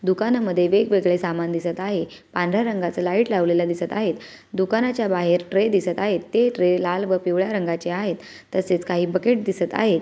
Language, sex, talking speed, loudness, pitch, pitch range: Marathi, female, 180 wpm, -22 LUFS, 185 Hz, 175-205 Hz